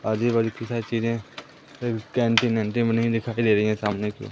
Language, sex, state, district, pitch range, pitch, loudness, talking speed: Hindi, female, Madhya Pradesh, Umaria, 110-120 Hz, 115 Hz, -24 LUFS, 180 wpm